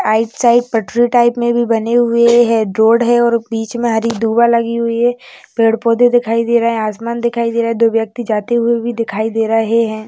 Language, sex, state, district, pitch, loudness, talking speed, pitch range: Hindi, female, Maharashtra, Aurangabad, 230 Hz, -14 LUFS, 225 wpm, 225-235 Hz